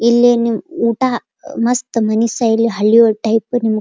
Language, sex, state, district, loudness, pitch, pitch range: Kannada, female, Karnataka, Dharwad, -15 LUFS, 230 Hz, 225-240 Hz